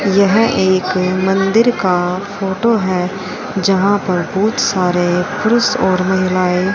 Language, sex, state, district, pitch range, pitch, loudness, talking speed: Hindi, female, Haryana, Rohtak, 185-205 Hz, 190 Hz, -15 LUFS, 115 wpm